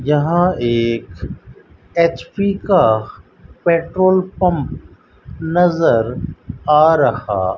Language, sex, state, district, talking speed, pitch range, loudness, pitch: Hindi, male, Rajasthan, Bikaner, 80 wpm, 120-175 Hz, -16 LUFS, 155 Hz